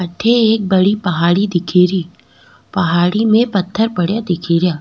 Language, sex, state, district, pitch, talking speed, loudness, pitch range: Rajasthani, female, Rajasthan, Nagaur, 185 Hz, 125 wpm, -15 LUFS, 175-215 Hz